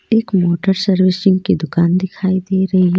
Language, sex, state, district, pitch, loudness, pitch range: Hindi, female, Jharkhand, Deoghar, 185 Hz, -15 LUFS, 180-190 Hz